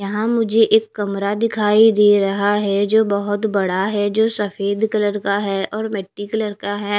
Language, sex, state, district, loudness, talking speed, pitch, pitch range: Hindi, female, Haryana, Rohtak, -18 LUFS, 190 wpm, 205 Hz, 200-220 Hz